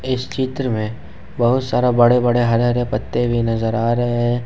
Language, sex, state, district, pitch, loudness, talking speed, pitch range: Hindi, male, Jharkhand, Ranchi, 120 Hz, -18 LUFS, 200 wpm, 115-125 Hz